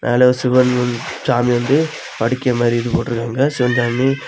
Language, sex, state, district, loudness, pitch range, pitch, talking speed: Tamil, male, Tamil Nadu, Kanyakumari, -17 LUFS, 120-130 Hz, 125 Hz, 155 wpm